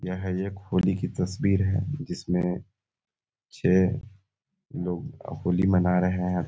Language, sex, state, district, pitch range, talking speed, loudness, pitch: Hindi, male, Bihar, Muzaffarpur, 90-100 Hz, 130 wpm, -26 LUFS, 95 Hz